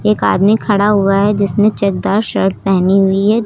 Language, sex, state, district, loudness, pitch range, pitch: Hindi, female, Uttar Pradesh, Lucknow, -13 LUFS, 195-210 Hz, 200 Hz